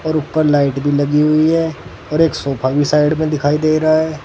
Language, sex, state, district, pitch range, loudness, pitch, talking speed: Hindi, male, Uttar Pradesh, Saharanpur, 145-155 Hz, -15 LUFS, 150 Hz, 240 wpm